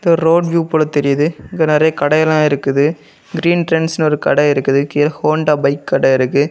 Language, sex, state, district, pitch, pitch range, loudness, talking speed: Tamil, male, Tamil Nadu, Kanyakumari, 150 Hz, 145-160 Hz, -14 LUFS, 185 wpm